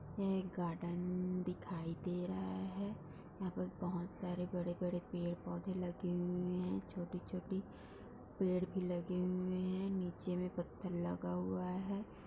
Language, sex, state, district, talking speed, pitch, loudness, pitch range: Hindi, female, Bihar, Darbhanga, 140 wpm, 180 Hz, -41 LUFS, 175-185 Hz